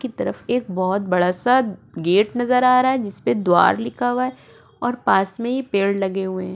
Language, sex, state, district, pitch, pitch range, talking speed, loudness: Hindi, female, Goa, North and South Goa, 220 Hz, 190-250 Hz, 230 wpm, -20 LUFS